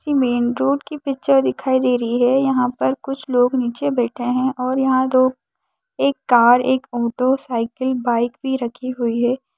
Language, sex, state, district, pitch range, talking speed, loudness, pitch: Hindi, female, Chhattisgarh, Kabirdham, 240-265 Hz, 195 wpm, -19 LUFS, 255 Hz